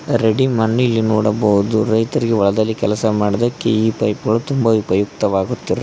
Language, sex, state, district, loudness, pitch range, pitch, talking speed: Kannada, male, Karnataka, Koppal, -16 LUFS, 105-115 Hz, 110 Hz, 135 wpm